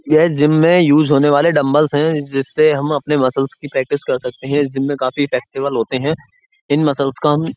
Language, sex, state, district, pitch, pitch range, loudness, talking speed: Hindi, male, Uttar Pradesh, Budaun, 145 Hz, 135-155 Hz, -15 LUFS, 220 wpm